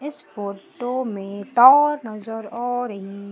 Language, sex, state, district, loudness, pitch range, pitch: Hindi, female, Madhya Pradesh, Umaria, -20 LUFS, 200-250 Hz, 225 Hz